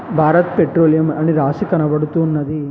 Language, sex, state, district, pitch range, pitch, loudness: Telugu, male, Telangana, Hyderabad, 150-165 Hz, 160 Hz, -15 LUFS